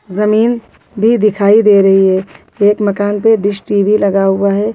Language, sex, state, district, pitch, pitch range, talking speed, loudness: Hindi, female, Bihar, Katihar, 205 Hz, 200-215 Hz, 175 wpm, -11 LUFS